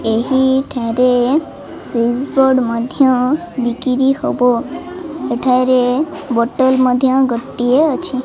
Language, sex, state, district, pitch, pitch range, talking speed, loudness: Odia, female, Odisha, Malkangiri, 255 Hz, 245-270 Hz, 85 wpm, -15 LUFS